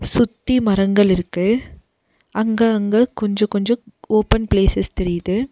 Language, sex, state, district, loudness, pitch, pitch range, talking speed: Tamil, female, Tamil Nadu, Nilgiris, -18 LUFS, 210 Hz, 185-225 Hz, 110 wpm